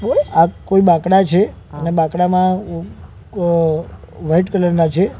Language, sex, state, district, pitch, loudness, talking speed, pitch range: Gujarati, male, Gujarat, Gandhinagar, 175 Hz, -15 LUFS, 125 wpm, 165-190 Hz